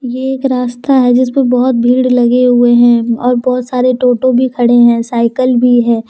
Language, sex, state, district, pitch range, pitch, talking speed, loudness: Hindi, female, Jharkhand, Deoghar, 240-255 Hz, 250 Hz, 195 wpm, -10 LUFS